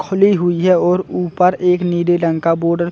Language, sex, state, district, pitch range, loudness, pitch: Hindi, male, Chhattisgarh, Bilaspur, 170-180 Hz, -15 LUFS, 175 Hz